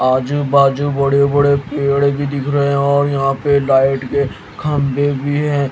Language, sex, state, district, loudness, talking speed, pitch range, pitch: Hindi, male, Haryana, Jhajjar, -15 LUFS, 170 wpm, 140-145 Hz, 140 Hz